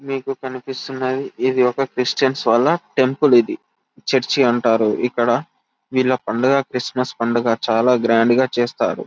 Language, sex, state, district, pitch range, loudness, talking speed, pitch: Telugu, male, Telangana, Karimnagar, 120-135 Hz, -18 LUFS, 120 wpm, 125 Hz